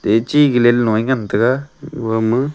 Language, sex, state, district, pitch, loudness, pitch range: Wancho, male, Arunachal Pradesh, Longding, 120 Hz, -16 LUFS, 110-135 Hz